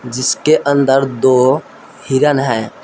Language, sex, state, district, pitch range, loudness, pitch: Hindi, male, Jharkhand, Palamu, 130-145 Hz, -13 LUFS, 135 Hz